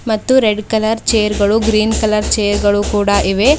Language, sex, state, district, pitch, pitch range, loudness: Kannada, female, Karnataka, Bidar, 215 Hz, 205-225 Hz, -14 LUFS